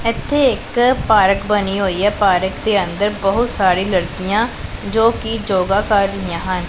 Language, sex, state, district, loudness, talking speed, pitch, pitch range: Punjabi, female, Punjab, Pathankot, -16 LUFS, 160 wpm, 200 Hz, 190-225 Hz